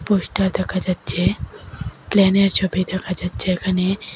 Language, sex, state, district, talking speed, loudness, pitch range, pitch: Bengali, female, Assam, Hailakandi, 115 wpm, -19 LUFS, 185-195 Hz, 185 Hz